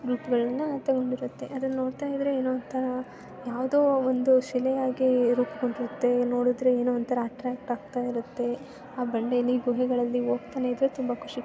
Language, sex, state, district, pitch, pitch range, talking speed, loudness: Kannada, female, Karnataka, Chamarajanagar, 250 Hz, 245-260 Hz, 80 wpm, -27 LUFS